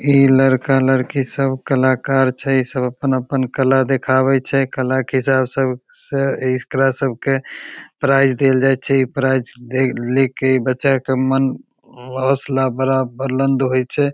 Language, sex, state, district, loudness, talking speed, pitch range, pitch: Maithili, male, Bihar, Begusarai, -17 LUFS, 145 wpm, 130-135 Hz, 135 Hz